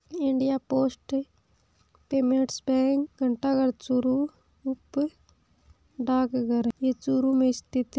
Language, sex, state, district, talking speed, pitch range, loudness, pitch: Hindi, female, Rajasthan, Churu, 105 wpm, 255-270 Hz, -27 LUFS, 265 Hz